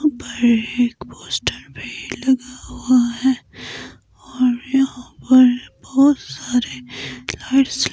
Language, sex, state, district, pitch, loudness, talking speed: Hindi, female, Himachal Pradesh, Shimla, 245 Hz, -18 LUFS, 105 wpm